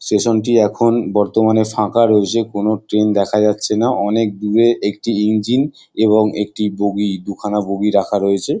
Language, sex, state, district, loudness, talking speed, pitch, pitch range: Bengali, male, West Bengal, Jalpaiguri, -16 LUFS, 155 wpm, 105 Hz, 105-115 Hz